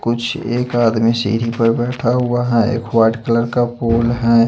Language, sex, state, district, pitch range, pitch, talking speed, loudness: Hindi, male, Chandigarh, Chandigarh, 115-120 Hz, 115 Hz, 185 wpm, -16 LUFS